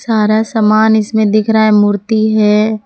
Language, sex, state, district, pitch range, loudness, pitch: Hindi, female, Jharkhand, Palamu, 215-220 Hz, -11 LUFS, 215 Hz